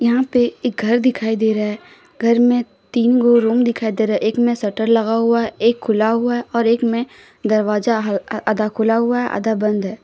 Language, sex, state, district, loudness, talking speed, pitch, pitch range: Hindi, female, Jharkhand, Deoghar, -17 LUFS, 235 wpm, 230 Hz, 215-240 Hz